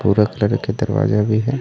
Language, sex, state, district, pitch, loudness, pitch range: Chhattisgarhi, male, Chhattisgarh, Raigarh, 110 Hz, -18 LUFS, 105-130 Hz